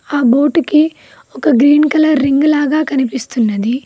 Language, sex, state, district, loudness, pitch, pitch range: Telugu, female, Telangana, Mahabubabad, -13 LUFS, 290 Hz, 260-305 Hz